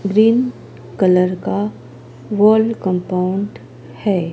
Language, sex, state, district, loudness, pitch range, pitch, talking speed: Hindi, female, Maharashtra, Gondia, -17 LUFS, 165-210 Hz, 185 Hz, 85 wpm